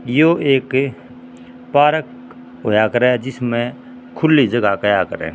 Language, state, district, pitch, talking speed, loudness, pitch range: Haryanvi, Haryana, Rohtak, 130 Hz, 110 wpm, -16 LUFS, 120-160 Hz